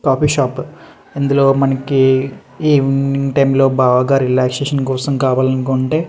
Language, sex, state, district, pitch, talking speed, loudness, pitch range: Telugu, male, Andhra Pradesh, Srikakulam, 135 Hz, 130 wpm, -15 LUFS, 130-140 Hz